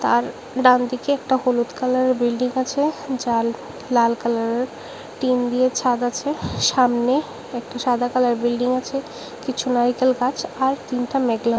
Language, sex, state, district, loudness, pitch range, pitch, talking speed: Bengali, female, Tripura, West Tripura, -21 LUFS, 240-260 Hz, 250 Hz, 140 wpm